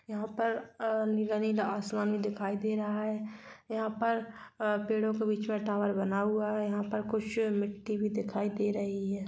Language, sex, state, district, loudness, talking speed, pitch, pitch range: Hindi, female, Bihar, Gopalganj, -32 LUFS, 195 wpm, 215 Hz, 205-220 Hz